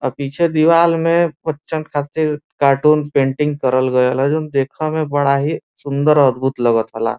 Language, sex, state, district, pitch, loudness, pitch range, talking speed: Bhojpuri, male, Uttar Pradesh, Varanasi, 145 Hz, -16 LUFS, 135-155 Hz, 165 wpm